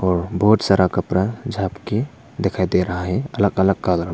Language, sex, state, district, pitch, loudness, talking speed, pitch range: Hindi, male, Arunachal Pradesh, Papum Pare, 95 Hz, -20 LUFS, 190 wpm, 90-105 Hz